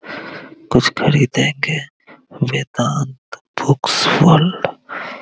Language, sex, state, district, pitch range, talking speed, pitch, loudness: Hindi, male, Bihar, Araria, 145-165 Hz, 70 wpm, 155 Hz, -16 LUFS